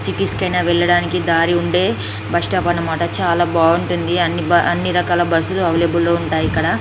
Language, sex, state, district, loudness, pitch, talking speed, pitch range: Telugu, female, Andhra Pradesh, Srikakulam, -17 LUFS, 170 Hz, 175 wpm, 160-175 Hz